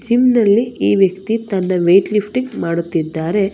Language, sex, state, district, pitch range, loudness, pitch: Kannada, female, Karnataka, Bangalore, 175-225 Hz, -16 LUFS, 195 Hz